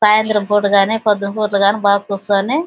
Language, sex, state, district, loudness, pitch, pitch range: Telugu, female, Andhra Pradesh, Anantapur, -15 LUFS, 205 Hz, 200-210 Hz